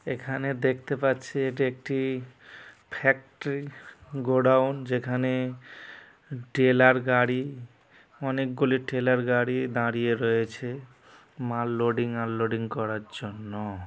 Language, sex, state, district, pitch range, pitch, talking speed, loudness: Bengali, male, West Bengal, North 24 Parganas, 120-135 Hz, 130 Hz, 85 wpm, -27 LUFS